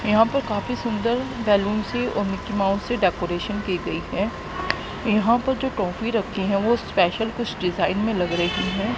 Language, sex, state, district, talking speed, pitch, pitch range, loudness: Hindi, female, Haryana, Jhajjar, 185 wpm, 210 Hz, 195-235 Hz, -23 LUFS